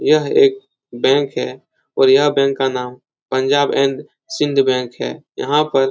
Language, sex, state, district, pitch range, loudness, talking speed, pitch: Hindi, male, Uttar Pradesh, Etah, 135-150 Hz, -17 LUFS, 170 wpm, 135 Hz